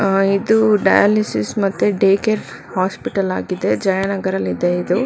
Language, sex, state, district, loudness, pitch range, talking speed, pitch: Kannada, female, Karnataka, Bangalore, -17 LUFS, 190-210 Hz, 120 wpm, 195 Hz